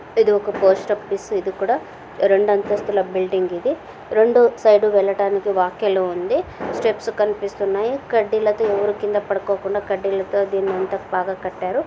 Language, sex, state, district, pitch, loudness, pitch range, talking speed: Telugu, female, Andhra Pradesh, Krishna, 200 Hz, -20 LUFS, 195-215 Hz, 140 wpm